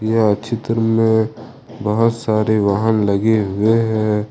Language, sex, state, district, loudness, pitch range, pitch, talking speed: Hindi, male, Jharkhand, Ranchi, -17 LUFS, 105-115 Hz, 110 Hz, 125 wpm